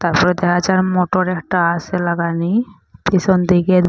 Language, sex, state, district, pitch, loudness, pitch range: Bengali, female, Assam, Hailakandi, 180 Hz, -16 LUFS, 175-185 Hz